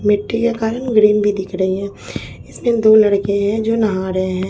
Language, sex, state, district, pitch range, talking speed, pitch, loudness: Hindi, female, Bihar, Katihar, 195-220 Hz, 215 wpm, 205 Hz, -16 LUFS